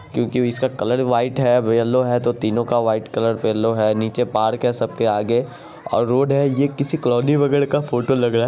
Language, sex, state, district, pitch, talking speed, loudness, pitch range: Hindi, male, Bihar, Saharsa, 120 Hz, 220 wpm, -19 LUFS, 115-130 Hz